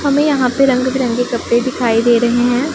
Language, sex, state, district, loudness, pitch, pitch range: Hindi, female, Punjab, Pathankot, -14 LUFS, 245 Hz, 240-270 Hz